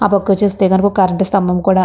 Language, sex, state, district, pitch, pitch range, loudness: Telugu, female, Andhra Pradesh, Anantapur, 195 Hz, 190-200 Hz, -14 LUFS